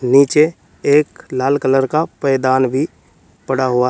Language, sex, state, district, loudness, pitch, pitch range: Hindi, male, Uttar Pradesh, Saharanpur, -16 LUFS, 135 Hz, 130-145 Hz